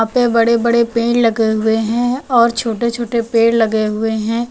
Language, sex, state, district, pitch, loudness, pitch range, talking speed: Hindi, female, Uttar Pradesh, Lucknow, 230 Hz, -15 LUFS, 225-235 Hz, 185 wpm